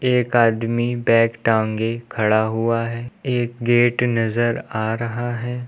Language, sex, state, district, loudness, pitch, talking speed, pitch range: Hindi, male, Uttar Pradesh, Lucknow, -20 LUFS, 115 Hz, 135 wpm, 115-120 Hz